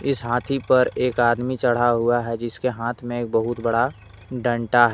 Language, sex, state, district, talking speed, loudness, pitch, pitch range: Hindi, male, Jharkhand, Deoghar, 195 wpm, -22 LUFS, 120 Hz, 120-125 Hz